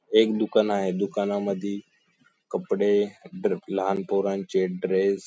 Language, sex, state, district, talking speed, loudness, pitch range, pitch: Marathi, male, Maharashtra, Sindhudurg, 115 wpm, -25 LUFS, 95-100 Hz, 100 Hz